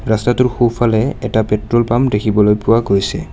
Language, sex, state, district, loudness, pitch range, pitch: Assamese, male, Assam, Kamrup Metropolitan, -15 LUFS, 105-120 Hz, 115 Hz